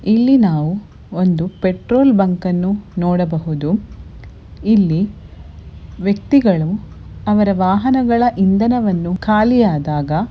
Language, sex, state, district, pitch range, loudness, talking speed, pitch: Kannada, female, Karnataka, Bellary, 175-215 Hz, -16 LUFS, 70 wpm, 190 Hz